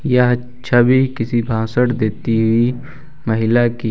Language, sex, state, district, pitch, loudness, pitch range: Hindi, male, Uttar Pradesh, Lucknow, 120 Hz, -16 LUFS, 115-125 Hz